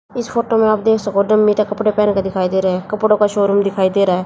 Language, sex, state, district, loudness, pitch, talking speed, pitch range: Hindi, female, Haryana, Jhajjar, -15 LUFS, 210 Hz, 280 wpm, 195-215 Hz